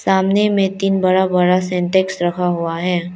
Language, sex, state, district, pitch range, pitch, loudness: Hindi, female, Arunachal Pradesh, Lower Dibang Valley, 180-190 Hz, 185 Hz, -16 LUFS